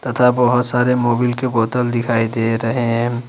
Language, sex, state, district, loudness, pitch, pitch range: Hindi, male, Jharkhand, Ranchi, -17 LUFS, 120 Hz, 115-125 Hz